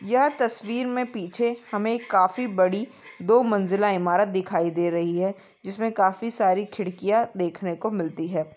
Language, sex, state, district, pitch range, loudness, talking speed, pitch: Hindi, female, Maharashtra, Aurangabad, 185-230 Hz, -24 LUFS, 155 wpm, 200 Hz